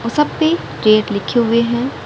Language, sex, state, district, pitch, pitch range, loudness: Hindi, female, Haryana, Jhajjar, 235 Hz, 220-285 Hz, -16 LUFS